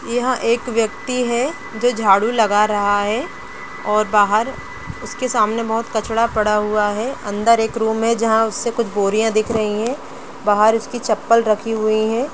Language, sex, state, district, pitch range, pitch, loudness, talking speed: Hindi, female, Jharkhand, Jamtara, 215-235 Hz, 225 Hz, -18 LUFS, 170 wpm